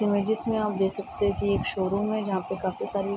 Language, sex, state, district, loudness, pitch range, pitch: Hindi, female, Bihar, Sitamarhi, -27 LUFS, 190-210 Hz, 200 Hz